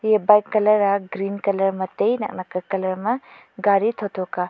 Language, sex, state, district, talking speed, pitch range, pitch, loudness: Wancho, female, Arunachal Pradesh, Longding, 200 wpm, 190-215 Hz, 200 Hz, -21 LUFS